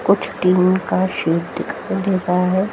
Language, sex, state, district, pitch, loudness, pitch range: Hindi, female, Haryana, Jhajjar, 185 Hz, -18 LUFS, 180-195 Hz